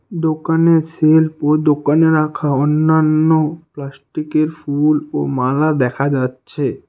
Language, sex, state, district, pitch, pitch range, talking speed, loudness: Bengali, male, West Bengal, Alipurduar, 155 Hz, 145-160 Hz, 105 wpm, -15 LUFS